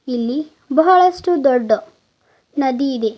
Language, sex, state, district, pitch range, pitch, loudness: Kannada, female, Karnataka, Bidar, 250-325 Hz, 275 Hz, -16 LUFS